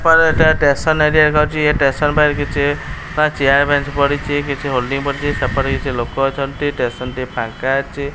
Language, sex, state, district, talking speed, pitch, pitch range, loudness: Odia, male, Odisha, Khordha, 175 wpm, 140 Hz, 135-150 Hz, -16 LUFS